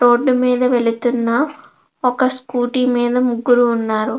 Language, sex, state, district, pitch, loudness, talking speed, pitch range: Telugu, female, Andhra Pradesh, Krishna, 245 Hz, -16 LUFS, 115 wpm, 240-255 Hz